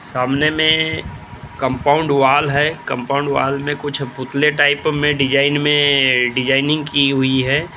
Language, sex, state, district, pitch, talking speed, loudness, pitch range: Hindi, male, Maharashtra, Gondia, 140 Hz, 140 wpm, -16 LUFS, 135-150 Hz